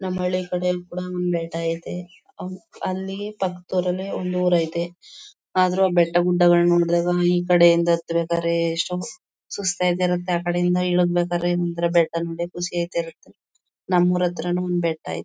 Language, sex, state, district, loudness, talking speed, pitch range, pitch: Kannada, female, Karnataka, Mysore, -22 LUFS, 140 wpm, 170-180 Hz, 175 Hz